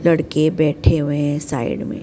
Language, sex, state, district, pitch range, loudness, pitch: Hindi, female, Maharashtra, Mumbai Suburban, 145-155 Hz, -18 LUFS, 155 Hz